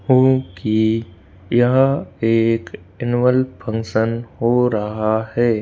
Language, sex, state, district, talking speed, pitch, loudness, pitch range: Hindi, male, Madhya Pradesh, Bhopal, 95 wpm, 115 Hz, -18 LUFS, 110-125 Hz